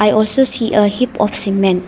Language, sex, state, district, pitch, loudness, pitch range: English, female, Arunachal Pradesh, Lower Dibang Valley, 210 Hz, -14 LUFS, 195-250 Hz